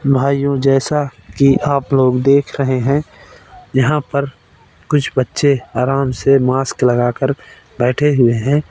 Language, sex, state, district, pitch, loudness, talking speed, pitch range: Hindi, male, Uttar Pradesh, Varanasi, 135 Hz, -15 LUFS, 130 wpm, 125-140 Hz